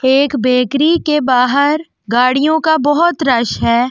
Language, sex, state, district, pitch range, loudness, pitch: Hindi, female, Delhi, New Delhi, 250-305 Hz, -13 LUFS, 275 Hz